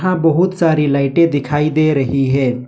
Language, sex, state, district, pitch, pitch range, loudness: Hindi, male, Jharkhand, Ranchi, 150 Hz, 140-165 Hz, -15 LUFS